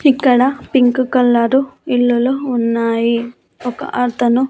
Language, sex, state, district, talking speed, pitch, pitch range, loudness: Telugu, female, Andhra Pradesh, Annamaya, 95 wpm, 245 Hz, 240-265 Hz, -15 LUFS